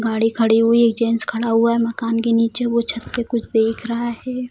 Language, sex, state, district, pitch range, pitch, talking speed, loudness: Hindi, female, Bihar, Jamui, 230-235 Hz, 230 Hz, 265 wpm, -18 LUFS